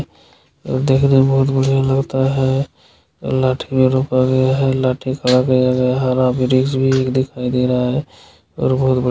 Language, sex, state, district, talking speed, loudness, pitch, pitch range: Maithili, male, Bihar, Supaul, 150 wpm, -16 LUFS, 130 Hz, 130-135 Hz